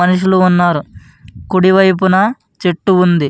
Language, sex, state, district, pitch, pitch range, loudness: Telugu, male, Andhra Pradesh, Anantapur, 180 Hz, 155-190 Hz, -12 LUFS